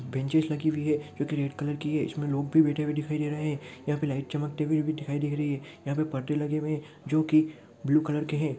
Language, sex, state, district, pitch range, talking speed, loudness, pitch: Hindi, male, Rajasthan, Churu, 145-155 Hz, 280 wpm, -29 LUFS, 150 Hz